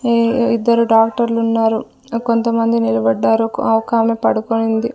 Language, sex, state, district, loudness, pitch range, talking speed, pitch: Telugu, female, Andhra Pradesh, Sri Satya Sai, -16 LUFS, 225-230 Hz, 110 wpm, 230 Hz